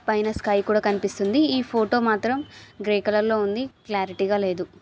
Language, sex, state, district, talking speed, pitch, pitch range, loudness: Telugu, female, Telangana, Nalgonda, 175 wpm, 210 Hz, 200-225 Hz, -23 LUFS